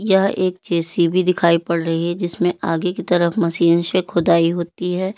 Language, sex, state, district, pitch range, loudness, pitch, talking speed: Hindi, female, Uttar Pradesh, Lalitpur, 170-180 Hz, -18 LUFS, 175 Hz, 185 wpm